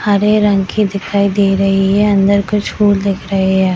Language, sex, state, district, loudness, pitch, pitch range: Hindi, female, Bihar, Madhepura, -13 LUFS, 200 Hz, 195-205 Hz